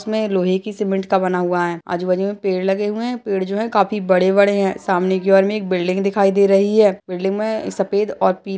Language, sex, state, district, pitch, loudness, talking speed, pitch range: Hindi, female, Uttarakhand, Uttarkashi, 195 Hz, -18 LUFS, 260 wpm, 185-205 Hz